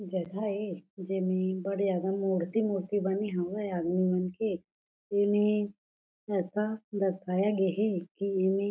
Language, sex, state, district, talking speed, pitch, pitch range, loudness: Chhattisgarhi, female, Chhattisgarh, Jashpur, 125 wpm, 195 Hz, 185-205 Hz, -31 LUFS